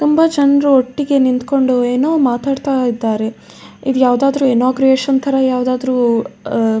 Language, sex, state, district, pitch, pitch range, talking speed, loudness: Kannada, female, Karnataka, Dakshina Kannada, 260 Hz, 245-275 Hz, 115 wpm, -14 LUFS